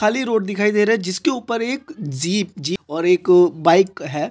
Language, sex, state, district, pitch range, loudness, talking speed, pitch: Hindi, male, Chhattisgarh, Korba, 175-225 Hz, -18 LUFS, 210 wpm, 195 Hz